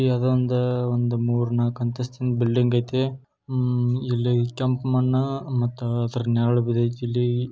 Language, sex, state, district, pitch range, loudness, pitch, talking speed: Kannada, male, Karnataka, Shimoga, 120-130 Hz, -23 LUFS, 125 Hz, 145 wpm